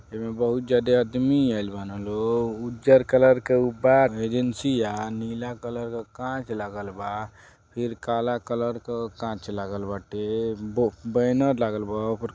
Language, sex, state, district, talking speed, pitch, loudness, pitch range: Bhojpuri, male, Uttar Pradesh, Deoria, 155 wpm, 115 Hz, -25 LUFS, 105-125 Hz